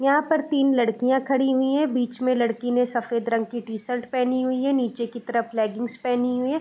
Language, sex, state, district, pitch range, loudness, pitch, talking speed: Hindi, female, Bihar, Vaishali, 235-265 Hz, -23 LUFS, 250 Hz, 225 wpm